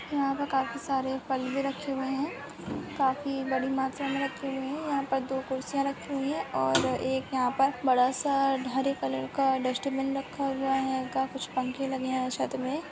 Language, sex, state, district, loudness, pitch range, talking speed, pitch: Hindi, female, Goa, North and South Goa, -30 LUFS, 260-275 Hz, 205 wpm, 270 Hz